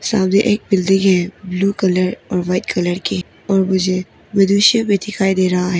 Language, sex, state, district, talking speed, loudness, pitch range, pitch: Hindi, female, Arunachal Pradesh, Papum Pare, 185 wpm, -16 LUFS, 185-200 Hz, 190 Hz